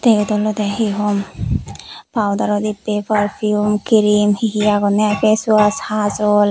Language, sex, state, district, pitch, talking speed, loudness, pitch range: Chakma, female, Tripura, West Tripura, 210 Hz, 130 wpm, -17 LUFS, 205-215 Hz